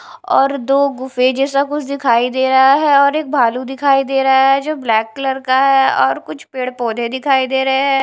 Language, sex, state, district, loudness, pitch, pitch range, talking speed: Hindi, female, Odisha, Khordha, -14 LUFS, 270 Hz, 260-280 Hz, 215 wpm